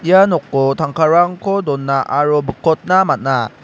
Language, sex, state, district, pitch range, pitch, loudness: Garo, male, Meghalaya, West Garo Hills, 135-180 Hz, 155 Hz, -15 LUFS